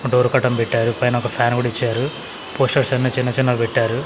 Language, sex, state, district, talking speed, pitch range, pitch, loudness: Telugu, male, Andhra Pradesh, Sri Satya Sai, 205 wpm, 120-130 Hz, 125 Hz, -18 LUFS